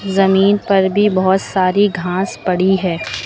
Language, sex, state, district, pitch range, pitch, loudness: Hindi, female, Uttar Pradesh, Lucknow, 185-195 Hz, 190 Hz, -15 LUFS